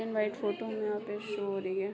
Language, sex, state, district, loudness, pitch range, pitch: Hindi, female, Bihar, Begusarai, -34 LUFS, 200-215 Hz, 210 Hz